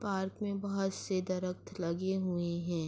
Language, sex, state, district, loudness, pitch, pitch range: Urdu, female, Andhra Pradesh, Anantapur, -36 LUFS, 185 Hz, 175-195 Hz